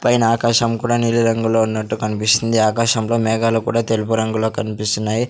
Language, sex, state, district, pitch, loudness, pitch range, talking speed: Telugu, male, Andhra Pradesh, Sri Satya Sai, 115 Hz, -17 LUFS, 110-115 Hz, 135 wpm